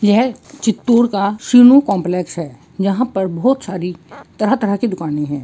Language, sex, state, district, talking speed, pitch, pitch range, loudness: Hindi, female, Andhra Pradesh, Chittoor, 155 wpm, 200 Hz, 180-240 Hz, -15 LUFS